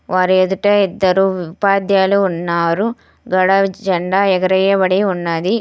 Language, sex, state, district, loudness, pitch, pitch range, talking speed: Telugu, female, Telangana, Hyderabad, -15 LUFS, 190 Hz, 185-195 Hz, 95 wpm